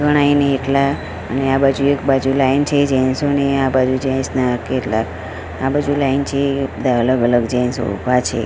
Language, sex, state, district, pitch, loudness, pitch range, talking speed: Gujarati, female, Gujarat, Gandhinagar, 135 Hz, -17 LUFS, 125-140 Hz, 190 wpm